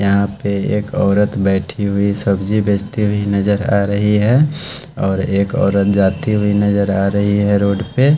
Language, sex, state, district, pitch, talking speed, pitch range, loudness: Hindi, male, Haryana, Charkhi Dadri, 100 Hz, 175 wpm, 100-105 Hz, -16 LUFS